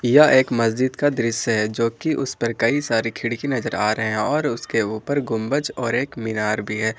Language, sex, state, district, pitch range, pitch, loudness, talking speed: Hindi, male, Jharkhand, Ranchi, 110-135 Hz, 115 Hz, -21 LUFS, 225 wpm